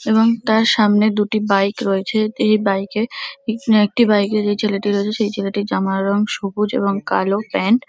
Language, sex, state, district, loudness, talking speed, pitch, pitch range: Bengali, female, West Bengal, Kolkata, -17 LUFS, 195 wpm, 210 Hz, 200-220 Hz